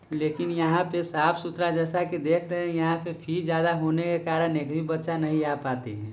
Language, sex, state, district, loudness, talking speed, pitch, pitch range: Hindi, male, Bihar, Sitamarhi, -27 LUFS, 225 wpm, 165 Hz, 155-170 Hz